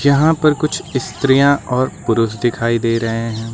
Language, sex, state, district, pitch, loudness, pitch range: Hindi, male, Uttar Pradesh, Lucknow, 130 Hz, -16 LUFS, 115-140 Hz